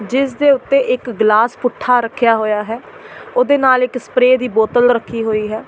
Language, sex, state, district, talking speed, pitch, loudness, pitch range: Punjabi, female, Delhi, New Delhi, 190 wpm, 245 Hz, -14 LUFS, 225-255 Hz